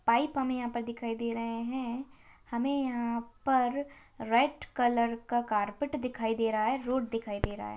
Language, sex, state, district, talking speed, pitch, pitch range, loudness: Hindi, female, West Bengal, Dakshin Dinajpur, 185 wpm, 235 Hz, 230-260 Hz, -32 LUFS